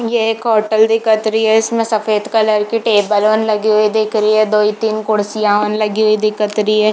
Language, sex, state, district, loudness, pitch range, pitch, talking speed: Hindi, female, Chhattisgarh, Bilaspur, -14 LUFS, 215-220 Hz, 215 Hz, 225 wpm